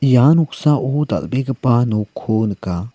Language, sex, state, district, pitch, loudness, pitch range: Garo, male, Meghalaya, South Garo Hills, 130 Hz, -17 LUFS, 110-145 Hz